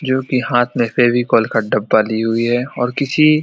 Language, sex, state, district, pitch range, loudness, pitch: Hindi, male, Bihar, Saran, 115-130 Hz, -16 LUFS, 120 Hz